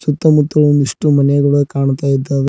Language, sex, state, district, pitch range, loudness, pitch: Kannada, male, Karnataka, Koppal, 140-150 Hz, -13 LUFS, 145 Hz